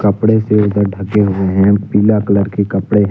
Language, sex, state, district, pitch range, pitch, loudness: Hindi, male, Jharkhand, Deoghar, 100-105 Hz, 100 Hz, -13 LUFS